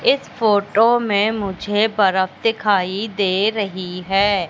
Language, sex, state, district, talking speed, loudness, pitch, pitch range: Hindi, female, Madhya Pradesh, Katni, 120 wpm, -18 LUFS, 205 Hz, 195-220 Hz